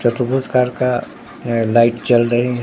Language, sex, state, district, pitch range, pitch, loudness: Hindi, male, Bihar, Katihar, 120-125 Hz, 120 Hz, -16 LUFS